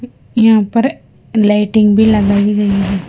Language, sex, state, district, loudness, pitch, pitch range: Hindi, female, Himachal Pradesh, Shimla, -12 LUFS, 210 Hz, 205-225 Hz